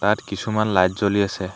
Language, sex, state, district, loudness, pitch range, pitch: Assamese, male, Assam, Hailakandi, -21 LUFS, 95-105 Hz, 100 Hz